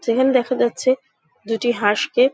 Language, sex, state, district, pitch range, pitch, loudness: Bengali, female, West Bengal, Jhargram, 225-255 Hz, 240 Hz, -19 LUFS